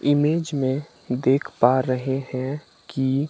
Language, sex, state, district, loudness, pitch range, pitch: Hindi, male, Himachal Pradesh, Shimla, -23 LUFS, 130-145 Hz, 135 Hz